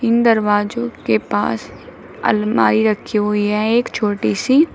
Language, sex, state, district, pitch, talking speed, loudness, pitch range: Hindi, female, Uttar Pradesh, Shamli, 220 Hz, 125 wpm, -17 LUFS, 210-235 Hz